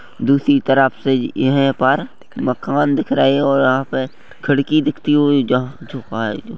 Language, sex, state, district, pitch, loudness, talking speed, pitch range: Hindi, male, Chhattisgarh, Rajnandgaon, 135 Hz, -16 LUFS, 145 wpm, 130-140 Hz